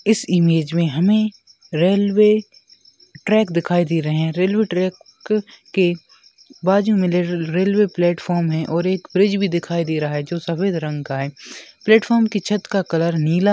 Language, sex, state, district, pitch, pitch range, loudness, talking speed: Hindi, male, Maharashtra, Nagpur, 180 Hz, 165-205 Hz, -19 LUFS, 165 wpm